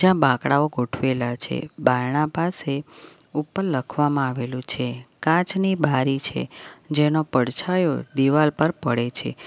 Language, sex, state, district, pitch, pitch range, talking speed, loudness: Gujarati, female, Gujarat, Valsad, 145 Hz, 130-155 Hz, 115 wpm, -22 LUFS